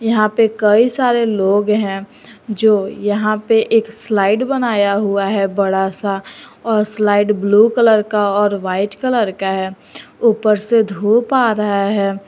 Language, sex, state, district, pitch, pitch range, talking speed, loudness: Hindi, female, Jharkhand, Garhwa, 210 Hz, 200-225 Hz, 155 wpm, -15 LUFS